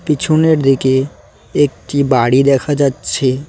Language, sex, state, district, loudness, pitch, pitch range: Bengali, male, West Bengal, Cooch Behar, -14 LUFS, 135 Hz, 130-145 Hz